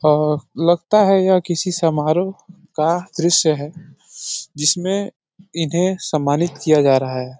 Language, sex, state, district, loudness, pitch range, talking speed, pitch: Hindi, male, Uttar Pradesh, Deoria, -18 LUFS, 150-185 Hz, 130 wpm, 165 Hz